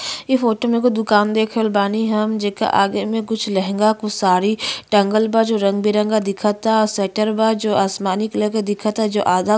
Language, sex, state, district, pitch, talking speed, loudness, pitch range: Bhojpuri, female, Uttar Pradesh, Ghazipur, 215 Hz, 190 wpm, -18 LUFS, 205-220 Hz